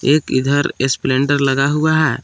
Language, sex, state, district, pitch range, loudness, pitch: Hindi, male, Jharkhand, Palamu, 135-150 Hz, -16 LUFS, 140 Hz